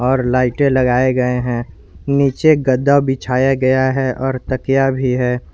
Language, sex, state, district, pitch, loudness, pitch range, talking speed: Hindi, male, Jharkhand, Garhwa, 130 Hz, -16 LUFS, 125-135 Hz, 150 wpm